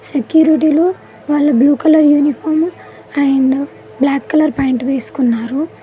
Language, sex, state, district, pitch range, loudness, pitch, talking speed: Telugu, female, Telangana, Mahabubabad, 270-310 Hz, -13 LUFS, 285 Hz, 105 wpm